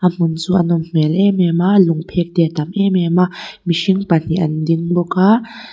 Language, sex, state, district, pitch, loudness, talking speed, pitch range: Mizo, female, Mizoram, Aizawl, 175 Hz, -15 LUFS, 240 wpm, 165-190 Hz